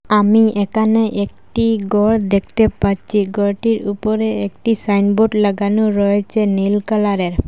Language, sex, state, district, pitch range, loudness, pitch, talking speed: Bengali, female, Assam, Hailakandi, 200-220 Hz, -16 LUFS, 210 Hz, 110 wpm